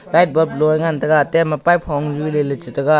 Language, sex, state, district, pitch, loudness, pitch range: Wancho, male, Arunachal Pradesh, Longding, 155 Hz, -17 LUFS, 150-165 Hz